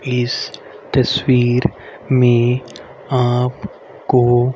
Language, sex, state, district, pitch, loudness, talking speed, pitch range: Hindi, male, Haryana, Rohtak, 125 Hz, -16 LUFS, 65 wpm, 120-130 Hz